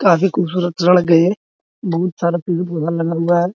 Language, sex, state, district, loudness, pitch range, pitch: Hindi, male, Bihar, Araria, -16 LUFS, 170-180 Hz, 175 Hz